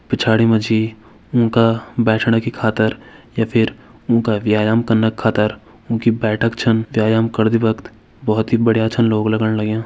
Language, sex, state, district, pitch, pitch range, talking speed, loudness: Hindi, male, Uttarakhand, Tehri Garhwal, 110 Hz, 110-115 Hz, 165 wpm, -17 LUFS